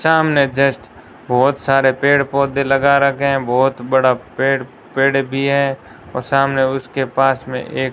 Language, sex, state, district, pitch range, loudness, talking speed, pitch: Hindi, male, Rajasthan, Bikaner, 130-140 Hz, -16 LUFS, 165 wpm, 135 Hz